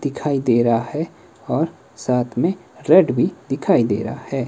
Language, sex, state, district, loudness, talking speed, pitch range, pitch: Hindi, male, Himachal Pradesh, Shimla, -19 LUFS, 175 wpm, 120-155 Hz, 130 Hz